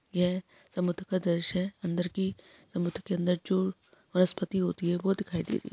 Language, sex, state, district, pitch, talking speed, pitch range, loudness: Hindi, male, Uttarakhand, Tehri Garhwal, 180 Hz, 210 wpm, 175-190 Hz, -31 LUFS